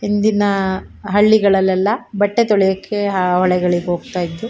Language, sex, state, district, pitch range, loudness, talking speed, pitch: Kannada, female, Karnataka, Shimoga, 185-205 Hz, -16 LUFS, 105 wpm, 195 Hz